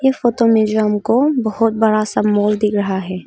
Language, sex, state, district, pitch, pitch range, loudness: Hindi, female, Arunachal Pradesh, Longding, 215 Hz, 210-230 Hz, -16 LUFS